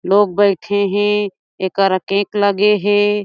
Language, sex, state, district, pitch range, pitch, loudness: Chhattisgarhi, female, Chhattisgarh, Jashpur, 195-205 Hz, 205 Hz, -16 LUFS